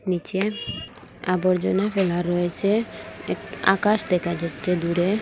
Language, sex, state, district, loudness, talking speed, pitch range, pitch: Bengali, female, Assam, Hailakandi, -23 LUFS, 105 wpm, 175-200 Hz, 185 Hz